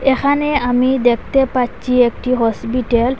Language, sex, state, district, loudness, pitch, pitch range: Bengali, female, Assam, Hailakandi, -16 LUFS, 250 Hz, 240-270 Hz